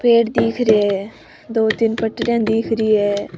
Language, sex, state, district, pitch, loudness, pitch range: Rajasthani, female, Rajasthan, Nagaur, 225 Hz, -17 LUFS, 210-230 Hz